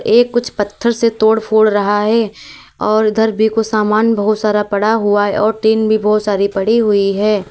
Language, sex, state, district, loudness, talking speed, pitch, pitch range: Hindi, female, Uttar Pradesh, Lalitpur, -14 LUFS, 200 wpm, 215 Hz, 205-220 Hz